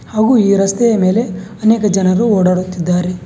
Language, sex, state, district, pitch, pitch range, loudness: Kannada, male, Karnataka, Bangalore, 195 Hz, 185-220 Hz, -13 LUFS